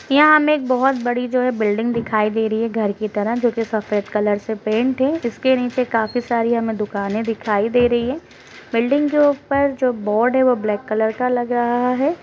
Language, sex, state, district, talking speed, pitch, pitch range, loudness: Hindi, female, Uttar Pradesh, Deoria, 215 wpm, 240 Hz, 220-255 Hz, -19 LUFS